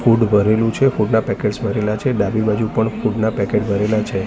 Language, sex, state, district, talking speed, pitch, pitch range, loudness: Gujarati, male, Gujarat, Gandhinagar, 225 wpm, 110 Hz, 105-115 Hz, -18 LUFS